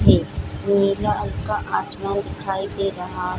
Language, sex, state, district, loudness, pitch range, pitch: Hindi, female, Bihar, Jamui, -23 LUFS, 190-200 Hz, 195 Hz